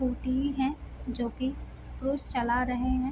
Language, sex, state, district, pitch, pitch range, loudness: Hindi, female, Bihar, Sitamarhi, 255 Hz, 250-265 Hz, -31 LUFS